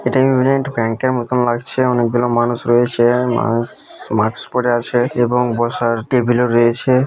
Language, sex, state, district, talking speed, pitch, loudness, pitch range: Bengali, male, West Bengal, Malda, 155 wpm, 120 Hz, -16 LUFS, 120-125 Hz